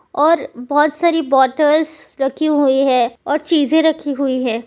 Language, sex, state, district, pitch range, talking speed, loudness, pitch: Hindi, female, Bihar, Supaul, 265-315 Hz, 155 wpm, -16 LUFS, 290 Hz